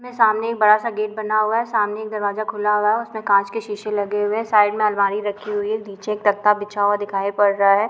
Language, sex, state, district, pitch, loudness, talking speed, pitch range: Hindi, female, Uttar Pradesh, Muzaffarnagar, 210 Hz, -20 LUFS, 275 wpm, 205-215 Hz